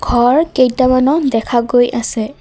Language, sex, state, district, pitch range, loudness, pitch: Assamese, female, Assam, Kamrup Metropolitan, 240-260 Hz, -13 LUFS, 245 Hz